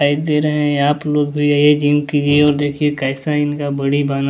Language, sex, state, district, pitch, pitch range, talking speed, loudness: Hindi, male, Bihar, West Champaran, 145 Hz, 145-150 Hz, 155 wpm, -16 LUFS